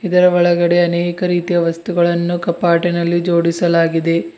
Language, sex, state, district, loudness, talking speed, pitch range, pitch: Kannada, male, Karnataka, Bidar, -15 LUFS, 95 wpm, 170-175 Hz, 175 Hz